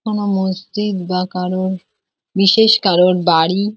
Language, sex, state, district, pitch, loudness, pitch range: Bengali, female, West Bengal, Jhargram, 190 Hz, -15 LUFS, 180-205 Hz